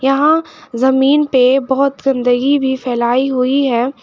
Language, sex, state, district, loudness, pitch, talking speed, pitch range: Hindi, female, Jharkhand, Garhwa, -14 LUFS, 265 Hz, 135 wpm, 250-280 Hz